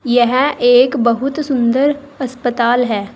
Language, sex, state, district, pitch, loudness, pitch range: Hindi, female, Uttar Pradesh, Saharanpur, 250 Hz, -14 LUFS, 240-275 Hz